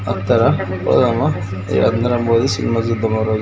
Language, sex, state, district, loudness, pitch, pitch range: Telugu, male, Andhra Pradesh, Srikakulam, -17 LUFS, 115 Hz, 100-115 Hz